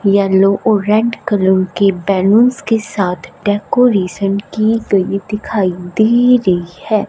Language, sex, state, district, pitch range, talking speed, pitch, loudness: Hindi, female, Punjab, Fazilka, 190-220 Hz, 120 wpm, 200 Hz, -14 LUFS